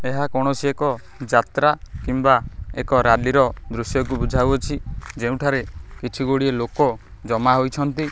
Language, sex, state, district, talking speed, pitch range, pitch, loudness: Odia, male, Odisha, Khordha, 125 wpm, 115-135 Hz, 130 Hz, -21 LUFS